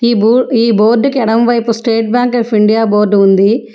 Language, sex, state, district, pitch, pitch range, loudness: Telugu, female, Telangana, Hyderabad, 225 Hz, 215-240 Hz, -11 LUFS